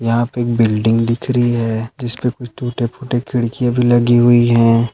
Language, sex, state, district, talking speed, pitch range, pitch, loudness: Hindi, male, Maharashtra, Dhule, 195 wpm, 115-120 Hz, 120 Hz, -15 LUFS